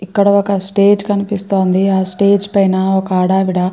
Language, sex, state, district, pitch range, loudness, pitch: Telugu, female, Andhra Pradesh, Chittoor, 190-200 Hz, -13 LUFS, 195 Hz